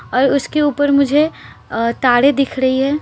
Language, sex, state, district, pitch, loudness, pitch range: Hindi, female, Bihar, Patna, 275 Hz, -15 LUFS, 260-290 Hz